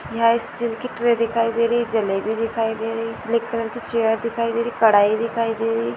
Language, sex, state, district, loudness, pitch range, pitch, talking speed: Hindi, female, Goa, North and South Goa, -21 LUFS, 225-230 Hz, 230 Hz, 220 wpm